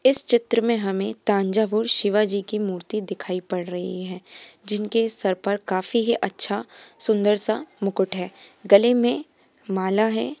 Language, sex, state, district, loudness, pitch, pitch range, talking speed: Hindi, female, Bihar, Purnia, -22 LUFS, 210 Hz, 190-230 Hz, 155 wpm